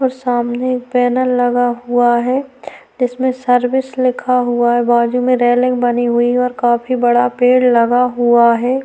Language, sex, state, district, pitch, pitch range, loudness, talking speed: Hindi, female, Chhattisgarh, Sukma, 245 Hz, 240-255 Hz, -14 LUFS, 170 wpm